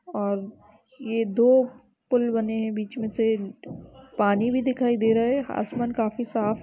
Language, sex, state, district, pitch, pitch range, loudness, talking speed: Hindi, female, Uttar Pradesh, Jalaun, 225 Hz, 220-245 Hz, -24 LUFS, 180 wpm